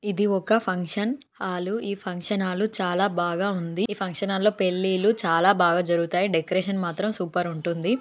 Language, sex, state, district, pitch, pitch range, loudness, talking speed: Telugu, female, Telangana, Karimnagar, 190 Hz, 175-205 Hz, -24 LUFS, 155 wpm